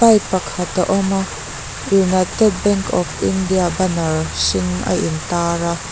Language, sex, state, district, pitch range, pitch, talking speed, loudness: Mizo, female, Mizoram, Aizawl, 155-195 Hz, 180 Hz, 150 wpm, -18 LUFS